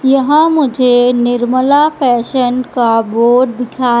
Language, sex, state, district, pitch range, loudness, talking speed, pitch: Hindi, female, Madhya Pradesh, Katni, 240-265 Hz, -11 LUFS, 120 wpm, 250 Hz